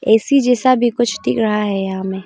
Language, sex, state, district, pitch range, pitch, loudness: Hindi, female, Arunachal Pradesh, Longding, 195-245 Hz, 220 Hz, -16 LUFS